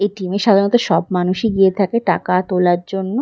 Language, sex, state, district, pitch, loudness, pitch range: Bengali, female, West Bengal, Dakshin Dinajpur, 190 Hz, -16 LUFS, 180-200 Hz